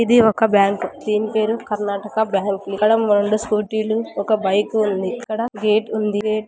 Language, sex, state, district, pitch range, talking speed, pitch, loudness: Telugu, female, Andhra Pradesh, Anantapur, 205-220 Hz, 185 wpm, 215 Hz, -19 LUFS